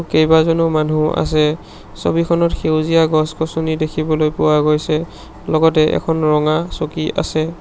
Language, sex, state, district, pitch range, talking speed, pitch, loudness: Assamese, male, Assam, Sonitpur, 155-160 Hz, 110 wpm, 155 Hz, -16 LUFS